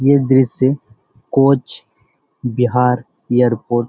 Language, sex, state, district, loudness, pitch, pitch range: Bengali, male, West Bengal, Malda, -16 LUFS, 125 Hz, 120-130 Hz